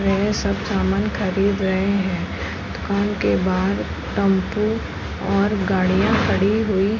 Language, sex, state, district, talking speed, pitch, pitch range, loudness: Hindi, female, Uttar Pradesh, Jalaun, 130 wpm, 195 Hz, 190-205 Hz, -21 LUFS